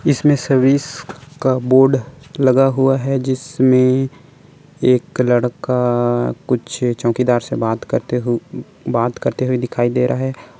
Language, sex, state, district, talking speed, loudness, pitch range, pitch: Chhattisgarhi, male, Chhattisgarh, Korba, 130 wpm, -17 LUFS, 120-135 Hz, 130 Hz